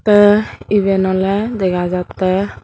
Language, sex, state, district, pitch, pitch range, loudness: Chakma, female, Tripura, Dhalai, 195 Hz, 185-205 Hz, -15 LUFS